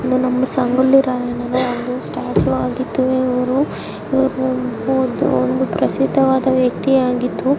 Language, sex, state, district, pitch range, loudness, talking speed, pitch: Kannada, male, Karnataka, Bijapur, 250-265 Hz, -17 LUFS, 85 wpm, 255 Hz